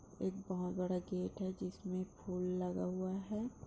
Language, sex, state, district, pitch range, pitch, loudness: Hindi, female, Bihar, Darbhanga, 180-190 Hz, 185 Hz, -41 LUFS